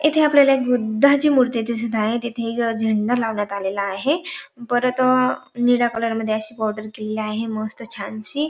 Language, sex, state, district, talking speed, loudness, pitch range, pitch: Marathi, female, Maharashtra, Dhule, 165 wpm, -20 LUFS, 215-255 Hz, 230 Hz